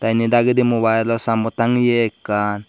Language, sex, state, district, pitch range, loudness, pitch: Chakma, male, Tripura, Dhalai, 110-120 Hz, -17 LUFS, 115 Hz